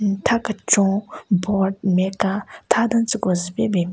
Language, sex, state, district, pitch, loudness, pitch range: Rengma, female, Nagaland, Kohima, 200 Hz, -20 LUFS, 190-225 Hz